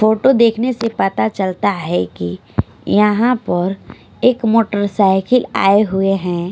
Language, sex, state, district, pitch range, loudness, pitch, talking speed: Hindi, female, Punjab, Fazilka, 175-225 Hz, -16 LUFS, 195 Hz, 130 wpm